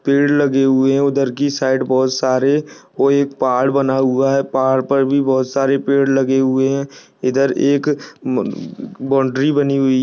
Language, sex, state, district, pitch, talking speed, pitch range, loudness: Hindi, male, Uttarakhand, Tehri Garhwal, 135 Hz, 185 wpm, 130-140 Hz, -16 LUFS